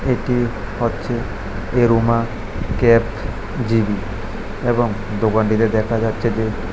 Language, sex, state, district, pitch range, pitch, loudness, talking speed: Bengali, male, Tripura, West Tripura, 105-115 Hz, 115 Hz, -19 LUFS, 90 wpm